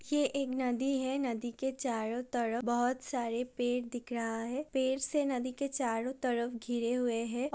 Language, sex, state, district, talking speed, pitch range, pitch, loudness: Hindi, female, Uttar Pradesh, Budaun, 185 wpm, 235-265 Hz, 245 Hz, -34 LUFS